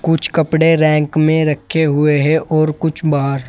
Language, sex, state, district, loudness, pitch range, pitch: Hindi, male, Uttar Pradesh, Saharanpur, -14 LUFS, 150-160 Hz, 155 Hz